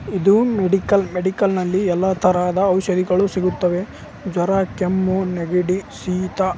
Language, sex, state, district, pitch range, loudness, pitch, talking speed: Kannada, male, Karnataka, Raichur, 180-195 Hz, -19 LUFS, 185 Hz, 100 wpm